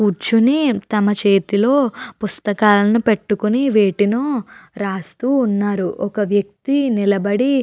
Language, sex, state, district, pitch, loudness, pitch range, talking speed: Telugu, female, Andhra Pradesh, Chittoor, 210 Hz, -17 LUFS, 205-245 Hz, 95 wpm